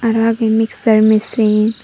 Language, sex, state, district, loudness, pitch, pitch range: Chakma, female, Tripura, Dhalai, -14 LUFS, 225 Hz, 215-225 Hz